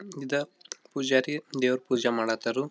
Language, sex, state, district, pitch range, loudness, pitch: Kannada, male, Karnataka, Belgaum, 125-140 Hz, -28 LUFS, 130 Hz